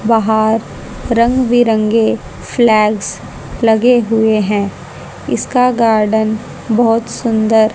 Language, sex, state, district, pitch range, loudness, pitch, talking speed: Hindi, female, Haryana, Jhajjar, 215-235 Hz, -13 LUFS, 220 Hz, 85 wpm